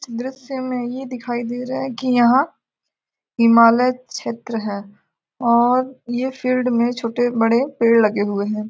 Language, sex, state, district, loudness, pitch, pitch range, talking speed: Hindi, female, Bihar, Gopalganj, -19 LUFS, 240 Hz, 230-255 Hz, 145 wpm